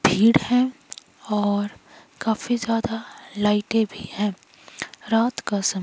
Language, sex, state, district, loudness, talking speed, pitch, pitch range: Hindi, female, Himachal Pradesh, Shimla, -23 LUFS, 115 wpm, 215 Hz, 205-230 Hz